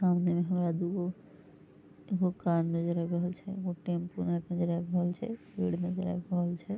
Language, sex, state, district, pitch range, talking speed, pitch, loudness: Maithili, female, Bihar, Vaishali, 175-180 Hz, 175 wpm, 175 Hz, -32 LUFS